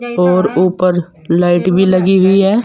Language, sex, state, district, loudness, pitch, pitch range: Hindi, male, Uttar Pradesh, Saharanpur, -12 LUFS, 185 Hz, 180-190 Hz